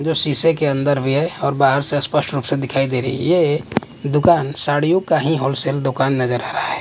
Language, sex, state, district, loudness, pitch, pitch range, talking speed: Hindi, male, Maharashtra, Mumbai Suburban, -18 LUFS, 140 Hz, 135-150 Hz, 235 wpm